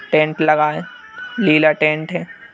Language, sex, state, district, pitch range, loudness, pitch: Hindi, male, Madhya Pradesh, Bhopal, 155-215 Hz, -16 LUFS, 155 Hz